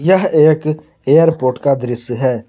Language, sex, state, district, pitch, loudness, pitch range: Hindi, male, Jharkhand, Garhwa, 140 Hz, -14 LUFS, 125-155 Hz